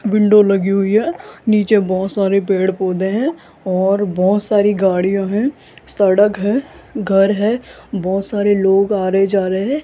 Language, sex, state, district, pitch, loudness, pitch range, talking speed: Hindi, female, Rajasthan, Jaipur, 200 Hz, -16 LUFS, 195-210 Hz, 165 wpm